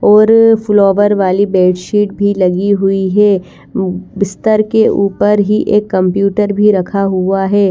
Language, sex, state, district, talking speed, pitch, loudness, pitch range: Hindi, female, Chandigarh, Chandigarh, 155 wpm, 200 Hz, -12 LUFS, 195-210 Hz